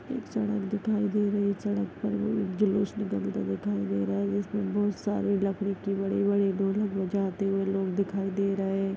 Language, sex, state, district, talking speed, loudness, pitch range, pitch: Hindi, female, Chhattisgarh, Bastar, 200 wpm, -29 LUFS, 195-205 Hz, 200 Hz